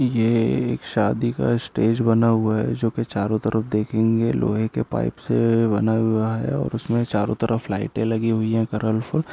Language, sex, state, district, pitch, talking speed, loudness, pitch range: Hindi, male, Bihar, Jamui, 110 Hz, 185 wpm, -22 LUFS, 110-115 Hz